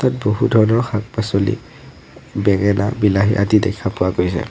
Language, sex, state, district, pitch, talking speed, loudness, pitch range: Assamese, male, Assam, Sonitpur, 105 Hz, 145 wpm, -17 LUFS, 100-115 Hz